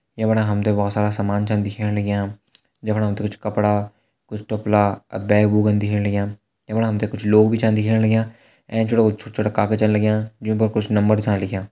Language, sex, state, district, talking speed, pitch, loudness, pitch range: Hindi, male, Uttarakhand, Tehri Garhwal, 225 wpm, 105 Hz, -20 LUFS, 105-110 Hz